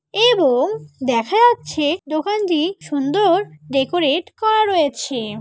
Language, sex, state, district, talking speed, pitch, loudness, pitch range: Bengali, female, West Bengal, Malda, 90 wpm, 320 Hz, -18 LUFS, 275-415 Hz